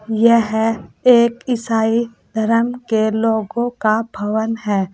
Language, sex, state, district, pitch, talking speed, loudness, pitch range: Hindi, female, Uttar Pradesh, Saharanpur, 225 Hz, 110 wpm, -17 LUFS, 220-235 Hz